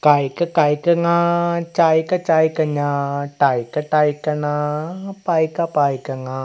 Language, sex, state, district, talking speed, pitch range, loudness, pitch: Malayalam, male, Kerala, Kasaragod, 185 wpm, 145-170 Hz, -19 LUFS, 155 Hz